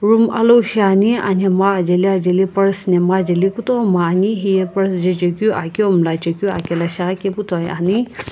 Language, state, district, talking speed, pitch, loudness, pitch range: Sumi, Nagaland, Kohima, 135 wpm, 190 Hz, -16 LUFS, 180-205 Hz